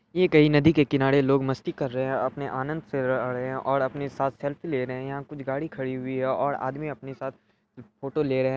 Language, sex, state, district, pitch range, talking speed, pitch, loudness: Hindi, male, Bihar, Araria, 130-145 Hz, 230 wpm, 135 Hz, -26 LUFS